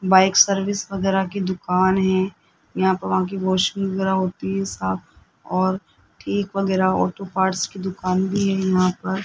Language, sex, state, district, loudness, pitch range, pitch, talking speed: Hindi, male, Rajasthan, Jaipur, -21 LUFS, 185-195 Hz, 190 Hz, 170 wpm